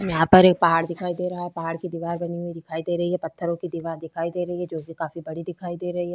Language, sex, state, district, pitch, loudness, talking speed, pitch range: Hindi, female, Bihar, Vaishali, 170 Hz, -24 LUFS, 310 wpm, 165-175 Hz